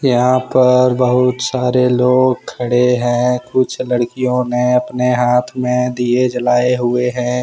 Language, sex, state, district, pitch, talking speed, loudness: Hindi, male, Jharkhand, Ranchi, 125 Hz, 135 wpm, -15 LUFS